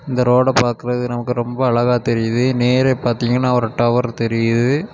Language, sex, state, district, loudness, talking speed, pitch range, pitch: Tamil, male, Tamil Nadu, Kanyakumari, -17 LUFS, 145 wpm, 120-125 Hz, 125 Hz